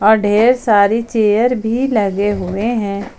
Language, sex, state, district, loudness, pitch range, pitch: Hindi, female, Jharkhand, Ranchi, -15 LUFS, 205-235 Hz, 215 Hz